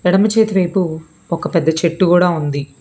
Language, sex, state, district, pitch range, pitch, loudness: Telugu, female, Telangana, Hyderabad, 160-185 Hz, 175 Hz, -16 LUFS